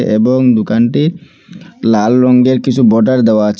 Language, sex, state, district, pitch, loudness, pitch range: Bengali, male, Assam, Hailakandi, 125 Hz, -11 LUFS, 110-135 Hz